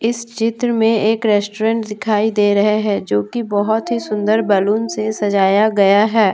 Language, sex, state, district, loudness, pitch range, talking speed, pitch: Hindi, female, Jharkhand, Deoghar, -16 LUFS, 205-225 Hz, 190 wpm, 215 Hz